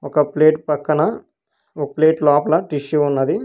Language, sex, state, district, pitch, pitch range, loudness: Telugu, male, Telangana, Hyderabad, 150 Hz, 145-155 Hz, -17 LUFS